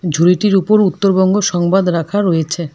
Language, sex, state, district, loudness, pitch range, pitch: Bengali, female, West Bengal, Alipurduar, -13 LUFS, 170-195 Hz, 185 Hz